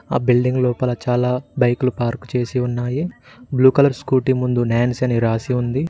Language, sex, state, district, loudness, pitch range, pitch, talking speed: Telugu, male, Telangana, Mahabubabad, -19 LUFS, 120-130 Hz, 125 Hz, 160 wpm